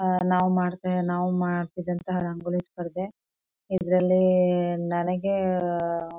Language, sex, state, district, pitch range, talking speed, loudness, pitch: Kannada, female, Karnataka, Chamarajanagar, 175-185 Hz, 95 wpm, -25 LUFS, 180 Hz